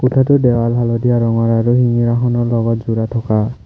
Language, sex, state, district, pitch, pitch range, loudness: Assamese, male, Assam, Kamrup Metropolitan, 120 Hz, 115-120 Hz, -15 LUFS